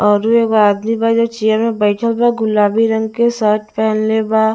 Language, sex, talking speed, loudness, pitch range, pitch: Bhojpuri, female, 185 wpm, -14 LUFS, 215-230 Hz, 220 Hz